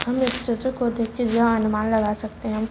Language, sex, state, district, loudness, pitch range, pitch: Hindi, female, Chhattisgarh, Raipur, -23 LUFS, 220-245 Hz, 230 Hz